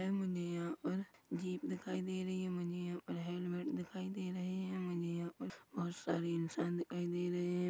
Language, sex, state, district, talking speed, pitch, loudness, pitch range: Hindi, male, Chhattisgarh, Rajnandgaon, 205 wpm, 175 Hz, -41 LUFS, 175-185 Hz